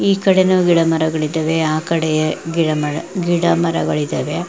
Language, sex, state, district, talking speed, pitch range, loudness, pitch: Kannada, female, Karnataka, Belgaum, 135 wpm, 155-175 Hz, -17 LUFS, 165 Hz